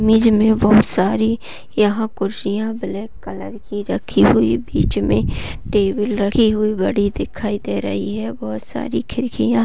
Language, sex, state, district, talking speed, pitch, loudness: Hindi, female, Uttarakhand, Tehri Garhwal, 155 wpm, 200 Hz, -18 LUFS